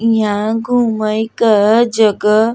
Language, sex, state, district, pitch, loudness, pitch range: Bhojpuri, female, Uttar Pradesh, Gorakhpur, 220 Hz, -13 LUFS, 215-230 Hz